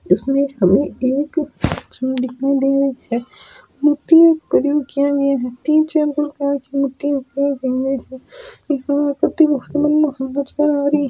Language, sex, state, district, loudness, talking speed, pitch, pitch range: Hindi, female, Rajasthan, Nagaur, -18 LUFS, 55 wpm, 280 Hz, 265-295 Hz